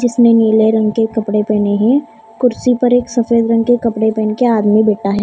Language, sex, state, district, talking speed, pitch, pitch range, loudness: Hindi, female, Maharashtra, Mumbai Suburban, 220 wpm, 225 Hz, 215-240 Hz, -13 LUFS